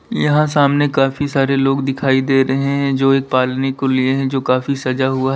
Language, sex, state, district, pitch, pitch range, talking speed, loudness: Hindi, male, Uttar Pradesh, Lalitpur, 135 Hz, 130-140 Hz, 215 wpm, -16 LUFS